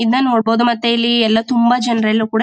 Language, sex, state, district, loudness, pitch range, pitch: Kannada, female, Karnataka, Mysore, -14 LUFS, 225-240 Hz, 235 Hz